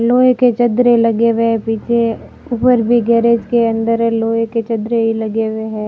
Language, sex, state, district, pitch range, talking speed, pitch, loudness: Hindi, female, Rajasthan, Barmer, 225-235 Hz, 175 wpm, 230 Hz, -14 LUFS